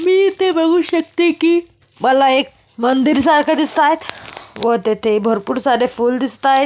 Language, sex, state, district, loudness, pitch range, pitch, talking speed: Marathi, female, Maharashtra, Solapur, -15 LUFS, 250-330 Hz, 275 Hz, 145 wpm